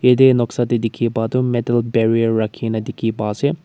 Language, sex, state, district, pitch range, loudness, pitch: Nagamese, male, Nagaland, Kohima, 115-125 Hz, -18 LUFS, 115 Hz